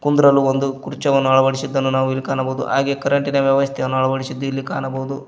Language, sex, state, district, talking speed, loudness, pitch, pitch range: Kannada, male, Karnataka, Koppal, 150 wpm, -18 LUFS, 135 Hz, 130-140 Hz